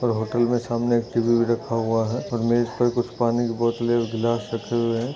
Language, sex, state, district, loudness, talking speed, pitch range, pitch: Hindi, male, Chhattisgarh, Jashpur, -23 LUFS, 245 wpm, 115-120 Hz, 115 Hz